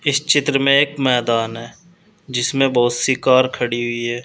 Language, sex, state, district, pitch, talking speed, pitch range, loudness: Hindi, male, Uttar Pradesh, Saharanpur, 130 Hz, 185 wpm, 120-140 Hz, -17 LUFS